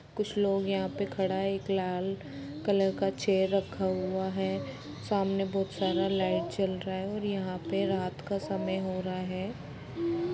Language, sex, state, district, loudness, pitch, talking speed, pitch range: Hindi, female, Jharkhand, Jamtara, -31 LUFS, 190 Hz, 175 wpm, 185-195 Hz